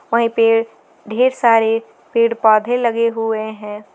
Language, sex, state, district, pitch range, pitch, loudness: Hindi, female, Jharkhand, Garhwa, 220-235 Hz, 230 Hz, -16 LUFS